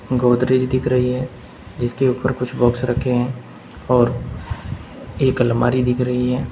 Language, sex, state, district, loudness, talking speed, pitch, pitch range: Hindi, male, Uttar Pradesh, Saharanpur, -19 LUFS, 145 wpm, 125 Hz, 120-125 Hz